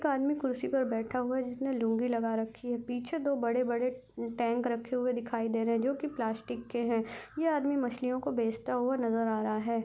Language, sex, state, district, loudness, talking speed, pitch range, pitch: Hindi, female, Chhattisgarh, Rajnandgaon, -32 LUFS, 225 wpm, 230-260 Hz, 245 Hz